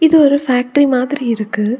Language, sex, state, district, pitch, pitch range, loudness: Tamil, female, Tamil Nadu, Nilgiris, 255 Hz, 240-285 Hz, -14 LUFS